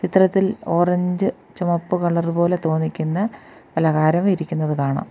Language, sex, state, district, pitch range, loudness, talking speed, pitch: Malayalam, female, Kerala, Kollam, 160-185 Hz, -20 LUFS, 105 wpm, 175 Hz